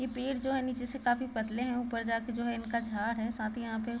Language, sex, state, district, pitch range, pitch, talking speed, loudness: Hindi, female, Bihar, Muzaffarpur, 230-250 Hz, 235 Hz, 315 wpm, -34 LUFS